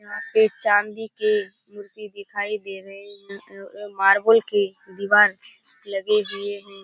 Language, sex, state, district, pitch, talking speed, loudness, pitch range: Hindi, female, Bihar, Kishanganj, 205 Hz, 140 wpm, -21 LUFS, 195-210 Hz